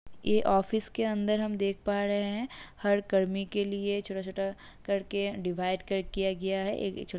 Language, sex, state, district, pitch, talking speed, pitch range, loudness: Hindi, female, Uttar Pradesh, Jalaun, 200 Hz, 190 wpm, 195-205 Hz, -31 LUFS